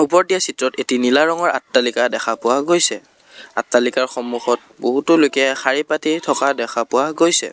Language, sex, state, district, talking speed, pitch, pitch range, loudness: Assamese, male, Assam, Kamrup Metropolitan, 160 wpm, 140 Hz, 125-160 Hz, -17 LUFS